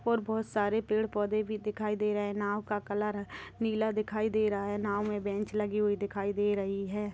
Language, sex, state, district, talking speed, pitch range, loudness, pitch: Hindi, female, Chhattisgarh, Raigarh, 225 wpm, 205-215 Hz, -32 LUFS, 210 Hz